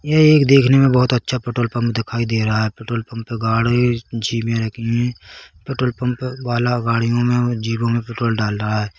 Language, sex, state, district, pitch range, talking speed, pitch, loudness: Hindi, male, Chhattisgarh, Bilaspur, 115-125 Hz, 175 wpm, 115 Hz, -18 LUFS